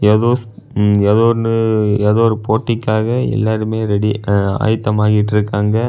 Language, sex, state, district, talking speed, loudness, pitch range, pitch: Tamil, male, Tamil Nadu, Kanyakumari, 110 wpm, -15 LUFS, 105-115 Hz, 110 Hz